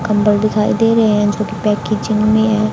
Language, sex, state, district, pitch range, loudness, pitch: Hindi, female, Haryana, Jhajjar, 210-215 Hz, -14 LUFS, 215 Hz